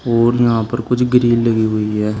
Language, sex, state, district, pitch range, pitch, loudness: Hindi, male, Uttar Pradesh, Shamli, 110-120 Hz, 115 Hz, -15 LUFS